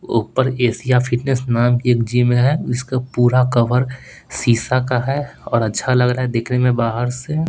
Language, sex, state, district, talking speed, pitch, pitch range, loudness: Hindi, male, Bihar, Patna, 185 wpm, 125 Hz, 120-130 Hz, -17 LUFS